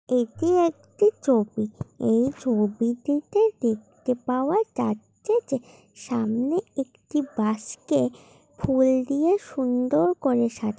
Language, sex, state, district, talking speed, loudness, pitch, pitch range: Bengali, female, West Bengal, Paschim Medinipur, 100 wpm, -24 LUFS, 260 Hz, 235-310 Hz